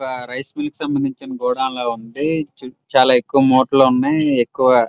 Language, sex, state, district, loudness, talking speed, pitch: Telugu, male, Andhra Pradesh, Srikakulam, -17 LUFS, 185 wpm, 135 Hz